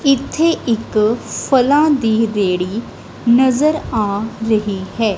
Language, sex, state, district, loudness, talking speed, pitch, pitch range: Punjabi, female, Punjab, Kapurthala, -16 LUFS, 105 wpm, 225 Hz, 210-265 Hz